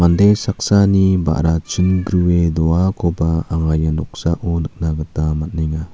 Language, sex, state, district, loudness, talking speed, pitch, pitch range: Garo, male, Meghalaya, South Garo Hills, -17 LUFS, 110 wpm, 85 Hz, 80-90 Hz